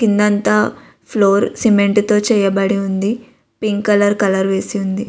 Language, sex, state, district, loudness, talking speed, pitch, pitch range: Telugu, female, Andhra Pradesh, Visakhapatnam, -15 LUFS, 140 wpm, 205 Hz, 195-210 Hz